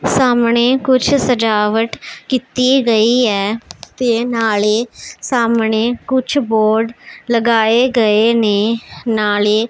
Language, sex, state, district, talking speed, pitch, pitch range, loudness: Punjabi, female, Punjab, Pathankot, 100 wpm, 230 Hz, 220-250 Hz, -14 LUFS